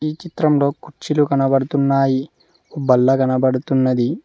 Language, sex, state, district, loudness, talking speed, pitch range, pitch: Telugu, male, Telangana, Mahabubabad, -17 LUFS, 70 wpm, 130-150 Hz, 140 Hz